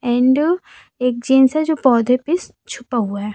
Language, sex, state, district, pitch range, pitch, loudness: Hindi, female, Chhattisgarh, Raipur, 240-305 Hz, 255 Hz, -17 LUFS